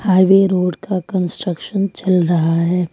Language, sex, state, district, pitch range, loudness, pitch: Hindi, female, Jharkhand, Ranchi, 175-195 Hz, -16 LUFS, 185 Hz